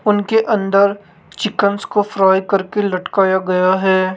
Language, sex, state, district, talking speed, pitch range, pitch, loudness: Hindi, male, Rajasthan, Jaipur, 130 wpm, 190-205 Hz, 195 Hz, -16 LUFS